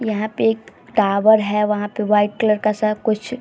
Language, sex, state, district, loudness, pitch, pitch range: Hindi, female, Bihar, Vaishali, -18 LUFS, 215 Hz, 210-220 Hz